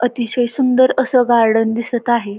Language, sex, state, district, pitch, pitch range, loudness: Marathi, female, Maharashtra, Pune, 240 Hz, 230-250 Hz, -15 LUFS